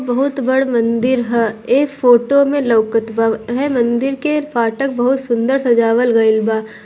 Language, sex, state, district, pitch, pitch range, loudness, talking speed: Bhojpuri, female, Bihar, Gopalganj, 240 Hz, 230-270 Hz, -15 LUFS, 160 wpm